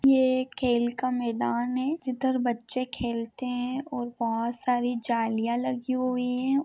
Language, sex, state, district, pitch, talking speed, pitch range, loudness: Hindi, female, Maharashtra, Pune, 250 Hz, 155 wpm, 235-255 Hz, -28 LUFS